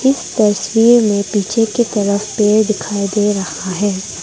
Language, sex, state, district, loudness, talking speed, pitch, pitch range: Hindi, female, Arunachal Pradesh, Longding, -15 LUFS, 140 wpm, 210 Hz, 200-225 Hz